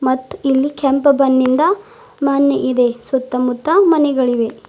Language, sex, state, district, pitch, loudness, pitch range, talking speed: Kannada, female, Karnataka, Bidar, 270 Hz, -15 LUFS, 255-290 Hz, 115 wpm